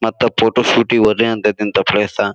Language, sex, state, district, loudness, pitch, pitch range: Kannada, male, Karnataka, Bijapur, -14 LUFS, 110 Hz, 105-115 Hz